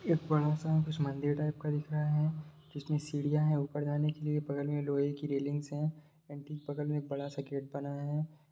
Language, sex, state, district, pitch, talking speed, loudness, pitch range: Hindi, male, Bihar, Sitamarhi, 150 Hz, 225 wpm, -34 LUFS, 145-150 Hz